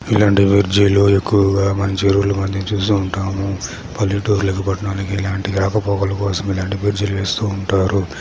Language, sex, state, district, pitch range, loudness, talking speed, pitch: Telugu, male, Andhra Pradesh, Chittoor, 95-100 Hz, -17 LUFS, 145 wpm, 100 Hz